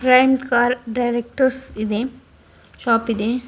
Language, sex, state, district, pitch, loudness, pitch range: Kannada, female, Karnataka, Bidar, 245 Hz, -20 LUFS, 230-255 Hz